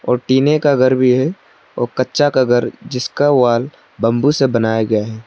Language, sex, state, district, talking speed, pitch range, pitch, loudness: Hindi, male, Arunachal Pradesh, Lower Dibang Valley, 180 wpm, 120-140 Hz, 125 Hz, -15 LUFS